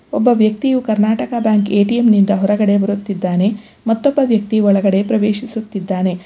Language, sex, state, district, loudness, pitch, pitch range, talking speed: Kannada, female, Karnataka, Bangalore, -15 LUFS, 210 Hz, 200-225 Hz, 115 wpm